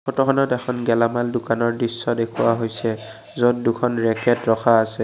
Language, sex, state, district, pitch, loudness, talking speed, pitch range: Assamese, male, Assam, Kamrup Metropolitan, 115 Hz, -20 LUFS, 145 wpm, 115-120 Hz